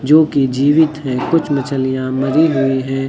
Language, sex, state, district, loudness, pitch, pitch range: Hindi, male, Uttar Pradesh, Lucknow, -15 LUFS, 135 Hz, 130-150 Hz